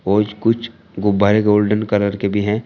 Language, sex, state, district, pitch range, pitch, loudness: Hindi, male, Uttar Pradesh, Shamli, 100-105 Hz, 105 Hz, -17 LUFS